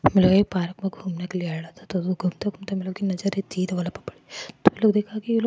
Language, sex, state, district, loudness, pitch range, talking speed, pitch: Marwari, female, Rajasthan, Churu, -25 LUFS, 180-200 Hz, 90 wpm, 185 Hz